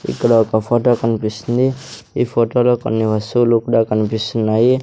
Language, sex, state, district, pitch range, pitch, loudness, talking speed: Telugu, male, Andhra Pradesh, Sri Satya Sai, 110-120 Hz, 115 Hz, -16 LUFS, 135 wpm